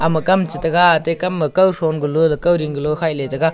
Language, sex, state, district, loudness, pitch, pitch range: Wancho, male, Arunachal Pradesh, Longding, -16 LUFS, 160 Hz, 155-175 Hz